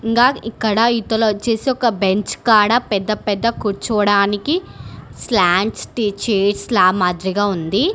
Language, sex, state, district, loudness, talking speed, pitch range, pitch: Telugu, female, Telangana, Hyderabad, -17 LUFS, 90 wpm, 200-230 Hz, 215 Hz